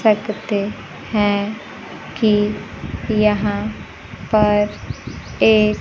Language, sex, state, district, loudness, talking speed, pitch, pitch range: Hindi, female, Bihar, Kaimur, -19 LUFS, 50 wpm, 210 Hz, 205-215 Hz